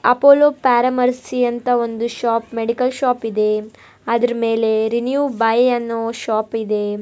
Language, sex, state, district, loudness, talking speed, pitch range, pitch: Kannada, female, Karnataka, Bellary, -17 LUFS, 120 wpm, 225-250 Hz, 235 Hz